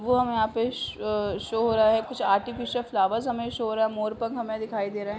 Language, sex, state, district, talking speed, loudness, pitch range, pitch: Hindi, female, Uttar Pradesh, Hamirpur, 245 wpm, -26 LUFS, 215-240 Hz, 225 Hz